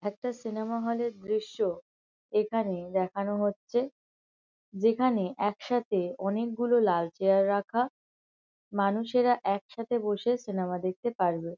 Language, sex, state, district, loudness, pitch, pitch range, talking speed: Bengali, female, West Bengal, Kolkata, -29 LUFS, 210 Hz, 195-235 Hz, 105 wpm